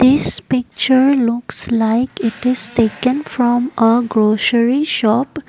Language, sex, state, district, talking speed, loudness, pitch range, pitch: English, female, Assam, Kamrup Metropolitan, 120 wpm, -15 LUFS, 230-255 Hz, 240 Hz